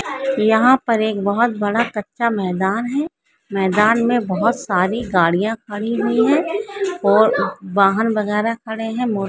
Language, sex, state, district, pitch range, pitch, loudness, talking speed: Hindi, female, Maharashtra, Solapur, 200-240 Hz, 220 Hz, -18 LUFS, 135 wpm